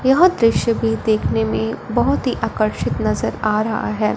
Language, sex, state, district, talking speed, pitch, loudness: Hindi, female, Punjab, Fazilka, 175 wpm, 215 Hz, -18 LUFS